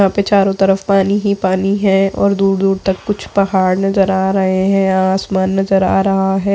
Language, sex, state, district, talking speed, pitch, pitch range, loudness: Hindi, female, Bihar, Saharsa, 200 wpm, 195 Hz, 190-195 Hz, -14 LUFS